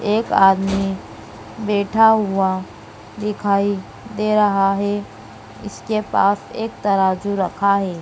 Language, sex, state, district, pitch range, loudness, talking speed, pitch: Hindi, female, Madhya Pradesh, Dhar, 190-210 Hz, -18 LUFS, 105 wpm, 200 Hz